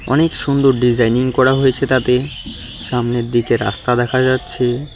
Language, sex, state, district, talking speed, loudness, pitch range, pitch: Bengali, male, West Bengal, Cooch Behar, 135 wpm, -15 LUFS, 120-130 Hz, 125 Hz